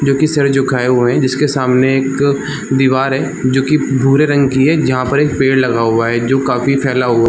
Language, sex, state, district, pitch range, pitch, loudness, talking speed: Hindi, male, Jharkhand, Jamtara, 130-140 Hz, 135 Hz, -13 LUFS, 230 wpm